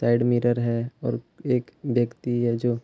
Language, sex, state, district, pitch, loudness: Hindi, male, Bihar, Gopalganj, 120 Hz, -25 LUFS